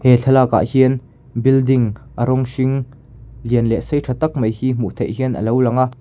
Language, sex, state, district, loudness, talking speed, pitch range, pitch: Mizo, male, Mizoram, Aizawl, -17 LUFS, 210 wpm, 120-130 Hz, 125 Hz